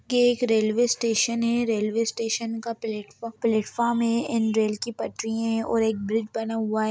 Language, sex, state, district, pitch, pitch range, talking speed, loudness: Hindi, female, Bihar, Saran, 225 Hz, 220-235 Hz, 190 wpm, -25 LUFS